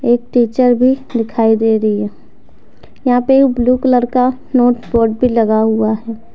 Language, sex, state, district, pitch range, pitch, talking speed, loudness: Hindi, female, Jharkhand, Deoghar, 225-250 Hz, 240 Hz, 170 wpm, -13 LUFS